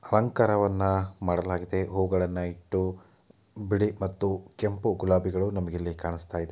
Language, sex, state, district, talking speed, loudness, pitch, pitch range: Kannada, male, Karnataka, Mysore, 100 wpm, -28 LUFS, 95 Hz, 90-100 Hz